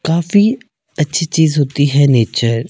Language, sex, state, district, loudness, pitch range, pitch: Hindi, male, Himachal Pradesh, Shimla, -14 LUFS, 135-165 Hz, 150 Hz